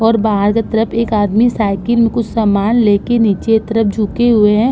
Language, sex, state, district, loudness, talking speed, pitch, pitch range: Hindi, female, Uttar Pradesh, Budaun, -13 LUFS, 205 wpm, 225 Hz, 210-230 Hz